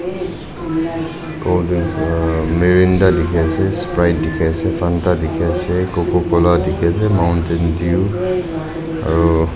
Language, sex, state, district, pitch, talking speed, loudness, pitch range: Nagamese, male, Nagaland, Dimapur, 90 Hz, 115 wpm, -17 LUFS, 85-105 Hz